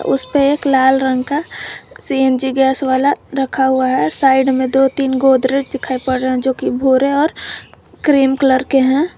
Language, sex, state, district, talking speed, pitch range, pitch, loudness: Hindi, female, Jharkhand, Garhwa, 190 wpm, 260-275 Hz, 265 Hz, -15 LUFS